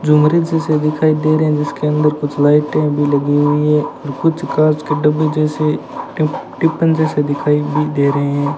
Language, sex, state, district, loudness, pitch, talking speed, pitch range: Hindi, male, Rajasthan, Bikaner, -15 LUFS, 150 Hz, 190 wpm, 145-155 Hz